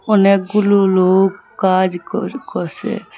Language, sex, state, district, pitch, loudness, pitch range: Bengali, female, Assam, Hailakandi, 195 Hz, -16 LUFS, 185-200 Hz